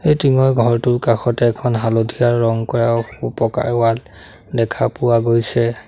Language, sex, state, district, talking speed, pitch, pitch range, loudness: Assamese, male, Assam, Sonitpur, 145 wpm, 115 Hz, 115-120 Hz, -17 LUFS